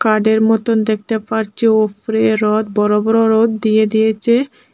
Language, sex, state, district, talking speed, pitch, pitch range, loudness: Bengali, female, Tripura, Dhalai, 140 wpm, 220 Hz, 215-225 Hz, -15 LUFS